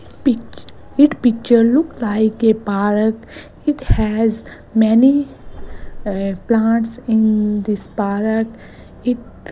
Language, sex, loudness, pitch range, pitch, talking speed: English, female, -17 LUFS, 215-240 Hz, 225 Hz, 100 wpm